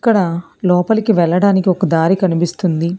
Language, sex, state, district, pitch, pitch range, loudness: Telugu, female, Telangana, Hyderabad, 180 Hz, 170-195 Hz, -15 LUFS